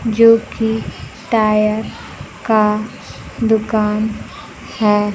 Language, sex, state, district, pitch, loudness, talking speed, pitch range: Hindi, female, Bihar, Kaimur, 220 Hz, -16 LUFS, 60 wpm, 215-225 Hz